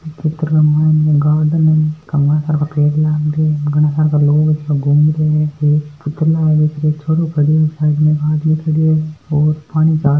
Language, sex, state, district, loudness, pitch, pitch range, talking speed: Marwari, female, Rajasthan, Nagaur, -14 LUFS, 150 Hz, 150-155 Hz, 65 wpm